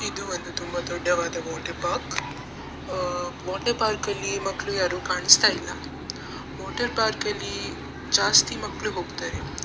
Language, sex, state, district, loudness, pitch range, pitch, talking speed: Kannada, female, Karnataka, Dakshina Kannada, -25 LUFS, 175-220 Hz, 180 Hz, 120 wpm